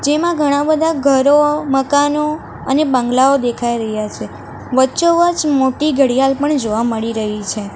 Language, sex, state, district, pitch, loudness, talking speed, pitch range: Gujarati, female, Gujarat, Valsad, 275 Hz, -15 LUFS, 145 wpm, 240-295 Hz